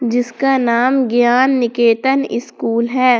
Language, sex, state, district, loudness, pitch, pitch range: Hindi, female, Jharkhand, Palamu, -15 LUFS, 245 Hz, 235-260 Hz